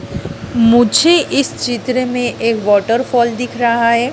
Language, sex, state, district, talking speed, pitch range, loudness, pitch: Hindi, female, Madhya Pradesh, Dhar, 130 wpm, 235-250 Hz, -14 LUFS, 240 Hz